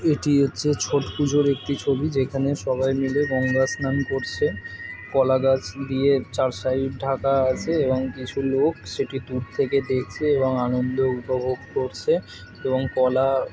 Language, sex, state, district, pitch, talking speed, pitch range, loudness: Bengali, male, West Bengal, North 24 Parganas, 135 Hz, 140 wpm, 130-140 Hz, -23 LUFS